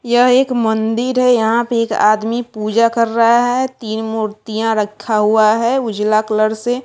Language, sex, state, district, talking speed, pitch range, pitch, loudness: Hindi, female, Bihar, West Champaran, 175 wpm, 215-240 Hz, 225 Hz, -15 LUFS